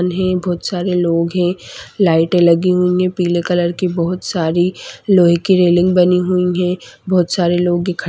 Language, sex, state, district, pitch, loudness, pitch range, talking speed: Hindi, female, West Bengal, Kolkata, 180 Hz, -15 LUFS, 175-180 Hz, 185 wpm